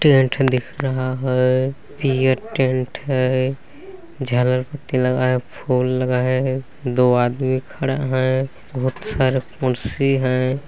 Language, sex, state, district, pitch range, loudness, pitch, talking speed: Hindi, male, Chhattisgarh, Balrampur, 130-135 Hz, -20 LUFS, 130 Hz, 125 wpm